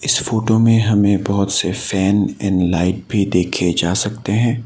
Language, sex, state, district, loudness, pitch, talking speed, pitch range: Hindi, male, Assam, Sonitpur, -17 LUFS, 100 Hz, 180 wpm, 90-110 Hz